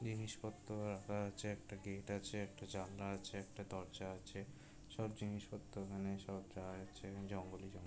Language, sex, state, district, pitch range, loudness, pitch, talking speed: Bengali, male, West Bengal, Jalpaiguri, 95-105 Hz, -48 LUFS, 100 Hz, 130 wpm